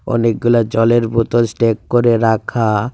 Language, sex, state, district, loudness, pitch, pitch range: Bengali, male, Tripura, West Tripura, -15 LUFS, 115 Hz, 115-120 Hz